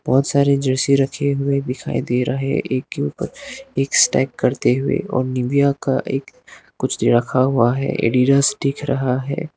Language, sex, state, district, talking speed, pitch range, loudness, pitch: Hindi, male, Arunachal Pradesh, Lower Dibang Valley, 175 wpm, 130-140 Hz, -19 LUFS, 135 Hz